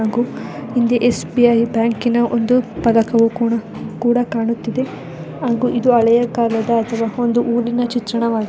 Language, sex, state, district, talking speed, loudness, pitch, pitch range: Kannada, female, Karnataka, Dakshina Kannada, 125 wpm, -17 LUFS, 235 Hz, 230-240 Hz